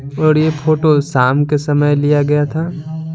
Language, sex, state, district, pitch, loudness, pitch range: Hindi, male, Bihar, Patna, 150 Hz, -14 LUFS, 145-155 Hz